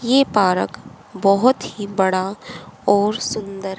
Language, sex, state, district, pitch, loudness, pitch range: Hindi, female, Haryana, Rohtak, 200 Hz, -19 LUFS, 190-220 Hz